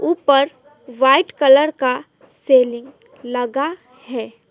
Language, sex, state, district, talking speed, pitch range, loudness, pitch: Hindi, female, West Bengal, Alipurduar, 95 wpm, 250-285 Hz, -17 LUFS, 265 Hz